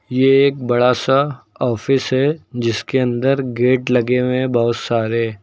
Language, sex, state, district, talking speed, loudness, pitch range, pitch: Hindi, male, Uttar Pradesh, Lucknow, 145 wpm, -17 LUFS, 120-135 Hz, 125 Hz